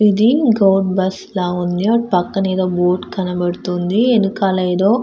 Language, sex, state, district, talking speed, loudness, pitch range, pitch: Telugu, female, Andhra Pradesh, Krishna, 145 wpm, -16 LUFS, 180-205 Hz, 190 Hz